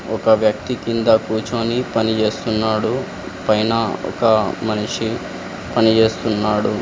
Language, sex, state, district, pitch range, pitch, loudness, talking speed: Telugu, female, Telangana, Komaram Bheem, 110-115 Hz, 110 Hz, -18 LUFS, 95 wpm